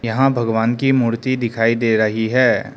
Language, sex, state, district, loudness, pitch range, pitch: Hindi, male, Arunachal Pradesh, Lower Dibang Valley, -17 LUFS, 115-130 Hz, 115 Hz